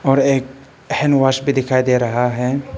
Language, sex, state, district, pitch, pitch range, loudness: Hindi, male, Arunachal Pradesh, Papum Pare, 135 Hz, 130-135 Hz, -17 LUFS